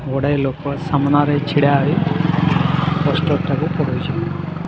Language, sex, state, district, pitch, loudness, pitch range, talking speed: Odia, male, Odisha, Sambalpur, 150 Hz, -18 LUFS, 145-160 Hz, 100 wpm